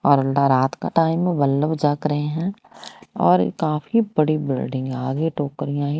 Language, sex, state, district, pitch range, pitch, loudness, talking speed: Hindi, female, Haryana, Rohtak, 140-160 Hz, 150 Hz, -21 LUFS, 170 wpm